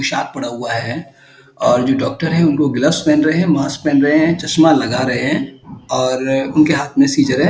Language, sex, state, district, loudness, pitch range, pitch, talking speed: Hindi, male, Uttar Pradesh, Muzaffarnagar, -15 LUFS, 135-160 Hz, 150 Hz, 215 wpm